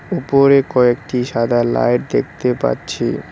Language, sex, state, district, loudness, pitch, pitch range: Bengali, male, West Bengal, Cooch Behar, -16 LUFS, 125 Hz, 120-140 Hz